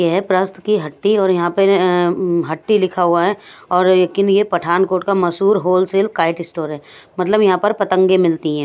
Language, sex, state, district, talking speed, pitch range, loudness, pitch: Hindi, female, Punjab, Pathankot, 210 wpm, 175-195 Hz, -16 LUFS, 185 Hz